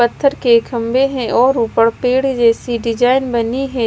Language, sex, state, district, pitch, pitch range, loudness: Hindi, female, Himachal Pradesh, Shimla, 245 Hz, 235-260 Hz, -15 LUFS